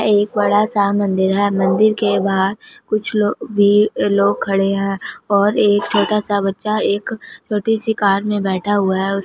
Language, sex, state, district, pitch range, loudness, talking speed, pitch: Hindi, female, Punjab, Fazilka, 195-210 Hz, -16 LUFS, 175 wpm, 205 Hz